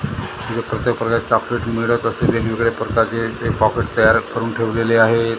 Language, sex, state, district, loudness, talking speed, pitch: Marathi, male, Maharashtra, Gondia, -18 LUFS, 155 wpm, 115 Hz